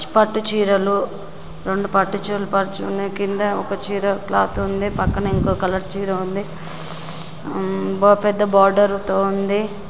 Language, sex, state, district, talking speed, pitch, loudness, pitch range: Telugu, female, Telangana, Karimnagar, 135 wpm, 195 Hz, -20 LUFS, 190-200 Hz